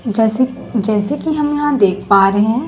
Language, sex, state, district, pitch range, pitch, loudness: Hindi, female, Chhattisgarh, Raipur, 205-290 Hz, 225 Hz, -15 LUFS